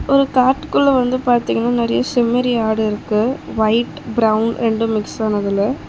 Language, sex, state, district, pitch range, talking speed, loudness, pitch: Tamil, female, Tamil Nadu, Chennai, 220-250 Hz, 135 wpm, -17 LUFS, 235 Hz